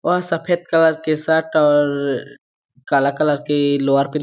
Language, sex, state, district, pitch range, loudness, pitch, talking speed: Chhattisgarhi, male, Chhattisgarh, Jashpur, 140-160 Hz, -17 LUFS, 150 Hz, 155 wpm